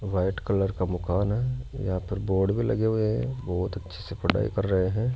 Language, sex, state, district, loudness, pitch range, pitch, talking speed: Hindi, male, Rajasthan, Jaipur, -27 LUFS, 95-110 Hz, 100 Hz, 220 wpm